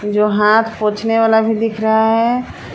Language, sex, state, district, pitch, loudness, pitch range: Hindi, female, Jharkhand, Palamu, 220 Hz, -15 LUFS, 210-225 Hz